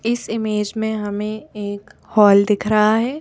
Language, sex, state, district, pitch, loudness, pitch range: Hindi, female, Madhya Pradesh, Bhopal, 215 Hz, -18 LUFS, 210-220 Hz